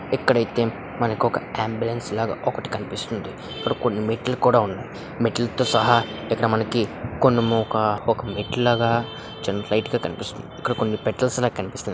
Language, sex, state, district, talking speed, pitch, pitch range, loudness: Telugu, male, Andhra Pradesh, Visakhapatnam, 150 wpm, 115 Hz, 110-120 Hz, -23 LUFS